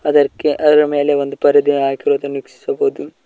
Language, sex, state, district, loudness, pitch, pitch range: Kannada, male, Karnataka, Koppal, -15 LUFS, 145 Hz, 140-150 Hz